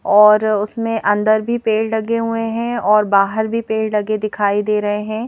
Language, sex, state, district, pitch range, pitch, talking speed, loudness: Hindi, female, Madhya Pradesh, Bhopal, 210-225 Hz, 215 Hz, 195 wpm, -16 LUFS